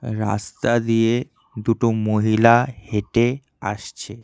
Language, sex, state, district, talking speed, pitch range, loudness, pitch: Bengali, male, West Bengal, Cooch Behar, 85 wpm, 105-120 Hz, -20 LUFS, 115 Hz